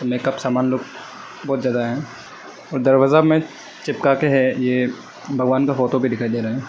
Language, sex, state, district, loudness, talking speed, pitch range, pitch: Hindi, male, Arunachal Pradesh, Lower Dibang Valley, -19 LUFS, 190 wpm, 125-140 Hz, 130 Hz